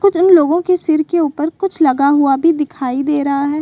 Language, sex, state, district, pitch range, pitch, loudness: Hindi, female, Bihar, Saran, 285-345 Hz, 310 Hz, -14 LUFS